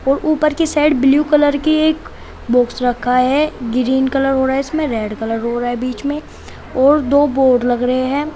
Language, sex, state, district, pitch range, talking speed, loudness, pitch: Hindi, female, Uttar Pradesh, Shamli, 250-295 Hz, 215 wpm, -15 LUFS, 270 Hz